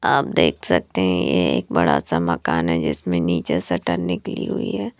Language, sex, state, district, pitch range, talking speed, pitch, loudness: Hindi, female, Punjab, Kapurthala, 85-90 Hz, 190 wpm, 85 Hz, -21 LUFS